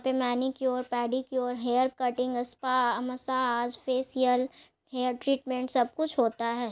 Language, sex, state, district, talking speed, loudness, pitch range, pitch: Magahi, female, Bihar, Gaya, 135 wpm, -29 LUFS, 245-260 Hz, 250 Hz